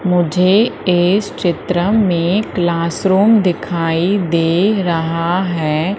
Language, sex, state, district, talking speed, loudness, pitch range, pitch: Hindi, female, Madhya Pradesh, Umaria, 90 wpm, -15 LUFS, 170-195 Hz, 175 Hz